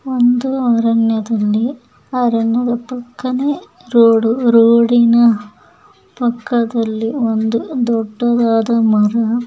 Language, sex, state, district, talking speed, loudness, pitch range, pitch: Kannada, female, Karnataka, Chamarajanagar, 65 wpm, -15 LUFS, 225-245 Hz, 235 Hz